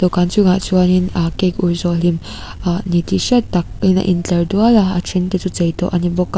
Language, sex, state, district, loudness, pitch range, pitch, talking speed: Mizo, female, Mizoram, Aizawl, -16 LUFS, 175-185 Hz, 180 Hz, 280 wpm